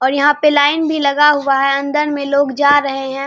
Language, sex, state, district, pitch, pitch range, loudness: Hindi, male, Bihar, Saharsa, 285 Hz, 275-295 Hz, -14 LUFS